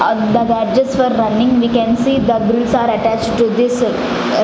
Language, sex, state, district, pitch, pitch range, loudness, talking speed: English, female, Punjab, Fazilka, 235 Hz, 225-245 Hz, -14 LUFS, 200 wpm